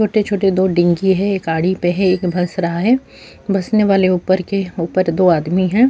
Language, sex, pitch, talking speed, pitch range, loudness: Urdu, female, 185 Hz, 215 wpm, 180-195 Hz, -16 LUFS